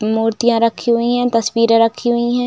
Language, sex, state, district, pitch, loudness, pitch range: Hindi, female, Chhattisgarh, Raigarh, 230 Hz, -15 LUFS, 230-240 Hz